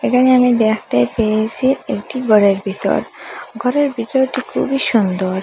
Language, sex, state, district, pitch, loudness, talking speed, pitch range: Bengali, female, Assam, Hailakandi, 230 Hz, -16 LUFS, 120 wpm, 200-255 Hz